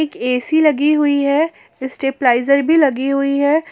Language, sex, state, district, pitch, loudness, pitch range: Hindi, female, Jharkhand, Garhwa, 280 Hz, -15 LUFS, 270-305 Hz